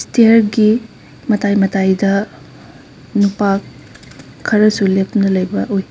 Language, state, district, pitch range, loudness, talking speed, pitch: Manipuri, Manipur, Imphal West, 190-215 Hz, -14 LUFS, 80 wpm, 200 Hz